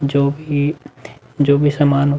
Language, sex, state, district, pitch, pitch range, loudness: Hindi, male, Uttar Pradesh, Budaun, 140 Hz, 140-145 Hz, -17 LUFS